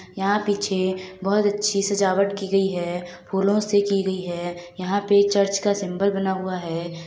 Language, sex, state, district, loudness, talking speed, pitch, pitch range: Hindi, female, Uttar Pradesh, Deoria, -23 LUFS, 185 wpm, 195 Hz, 185-200 Hz